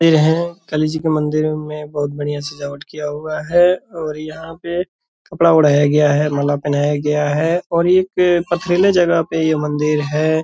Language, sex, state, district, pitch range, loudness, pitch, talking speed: Hindi, male, Bihar, Purnia, 150-170 Hz, -17 LUFS, 155 Hz, 185 wpm